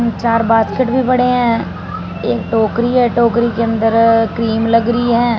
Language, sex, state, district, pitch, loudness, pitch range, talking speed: Hindi, female, Punjab, Fazilka, 230 Hz, -14 LUFS, 225-240 Hz, 165 wpm